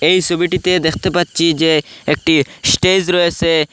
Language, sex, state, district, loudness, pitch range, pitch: Bengali, male, Assam, Hailakandi, -14 LUFS, 160-180 Hz, 170 Hz